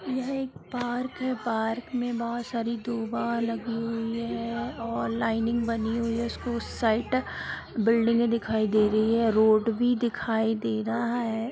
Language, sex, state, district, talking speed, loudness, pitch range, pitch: Hindi, female, Bihar, Sitamarhi, 170 wpm, -27 LUFS, 225-240 Hz, 230 Hz